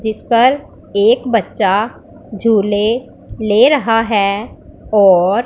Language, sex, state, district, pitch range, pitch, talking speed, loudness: Hindi, female, Punjab, Pathankot, 205-245 Hz, 220 Hz, 90 wpm, -14 LUFS